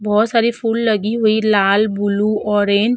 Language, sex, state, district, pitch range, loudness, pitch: Hindi, female, Uttar Pradesh, Hamirpur, 205-225 Hz, -16 LUFS, 215 Hz